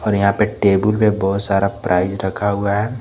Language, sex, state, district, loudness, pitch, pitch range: Hindi, male, Jharkhand, Garhwa, -17 LUFS, 100 Hz, 95-105 Hz